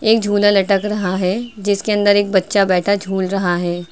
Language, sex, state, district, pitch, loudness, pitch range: Hindi, female, Uttar Pradesh, Lucknow, 200 Hz, -16 LUFS, 185-205 Hz